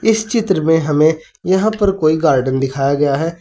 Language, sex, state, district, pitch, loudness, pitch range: Hindi, male, Uttar Pradesh, Saharanpur, 160 Hz, -15 LUFS, 145-195 Hz